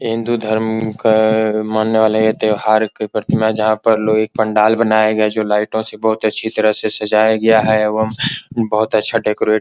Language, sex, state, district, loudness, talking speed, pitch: Hindi, male, Bihar, Supaul, -15 LUFS, 200 wpm, 110 Hz